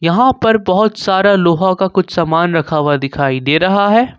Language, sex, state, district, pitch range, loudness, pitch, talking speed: Hindi, male, Jharkhand, Ranchi, 165-200 Hz, -13 LUFS, 185 Hz, 200 wpm